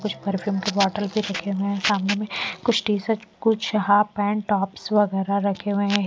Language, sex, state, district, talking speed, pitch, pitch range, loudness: Hindi, female, Bihar, Patna, 200 wpm, 205 Hz, 200-210 Hz, -23 LUFS